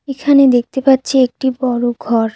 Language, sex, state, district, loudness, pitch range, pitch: Bengali, female, West Bengal, Cooch Behar, -14 LUFS, 240-270 Hz, 260 Hz